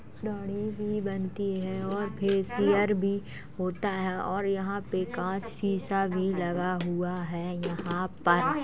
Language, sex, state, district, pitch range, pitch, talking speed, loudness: Hindi, female, Uttar Pradesh, Jalaun, 185-200 Hz, 195 Hz, 140 wpm, -30 LUFS